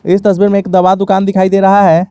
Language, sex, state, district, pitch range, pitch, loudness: Hindi, male, Jharkhand, Garhwa, 185-200 Hz, 195 Hz, -10 LUFS